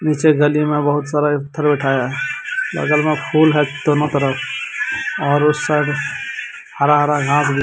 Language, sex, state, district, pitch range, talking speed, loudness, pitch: Hindi, male, Jharkhand, Deoghar, 145-150 Hz, 155 wpm, -17 LUFS, 150 Hz